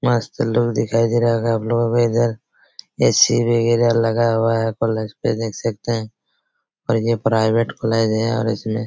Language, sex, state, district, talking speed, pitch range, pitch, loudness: Hindi, male, Chhattisgarh, Raigarh, 185 wpm, 110-115 Hz, 115 Hz, -18 LUFS